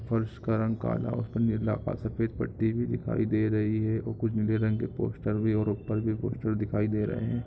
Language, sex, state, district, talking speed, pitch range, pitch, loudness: Hindi, male, Bihar, Samastipur, 240 wpm, 110-115 Hz, 110 Hz, -29 LUFS